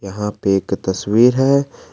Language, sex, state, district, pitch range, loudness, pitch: Hindi, male, Jharkhand, Garhwa, 100-125 Hz, -17 LUFS, 105 Hz